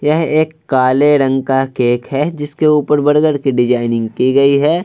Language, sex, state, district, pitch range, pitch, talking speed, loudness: Hindi, male, Bihar, Vaishali, 130-150 Hz, 140 Hz, 185 wpm, -13 LUFS